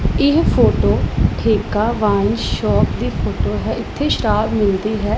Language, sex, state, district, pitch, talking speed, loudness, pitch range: Punjabi, female, Punjab, Pathankot, 210 Hz, 140 wpm, -17 LUFS, 205-220 Hz